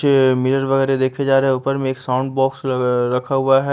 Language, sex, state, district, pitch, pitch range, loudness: Hindi, male, Punjab, Fazilka, 135 Hz, 130-135 Hz, -18 LUFS